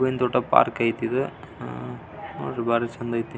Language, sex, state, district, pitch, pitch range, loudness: Kannada, male, Karnataka, Belgaum, 120 Hz, 115-125 Hz, -24 LUFS